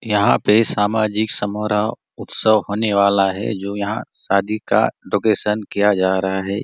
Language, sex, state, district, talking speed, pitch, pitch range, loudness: Hindi, male, Chhattisgarh, Bastar, 155 wpm, 105 Hz, 100-110 Hz, -18 LUFS